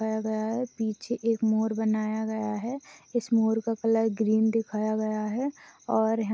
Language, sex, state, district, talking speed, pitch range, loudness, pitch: Hindi, female, Maharashtra, Aurangabad, 180 wpm, 215-225 Hz, -28 LUFS, 220 Hz